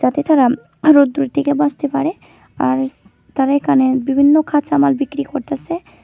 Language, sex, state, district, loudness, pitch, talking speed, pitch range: Bengali, female, Tripura, West Tripura, -16 LUFS, 285 Hz, 140 wpm, 270-290 Hz